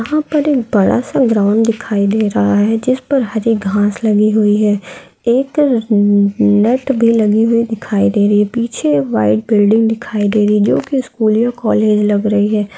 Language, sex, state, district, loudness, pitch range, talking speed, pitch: Hindi, female, Bihar, Araria, -13 LUFS, 205-235 Hz, 195 wpm, 215 Hz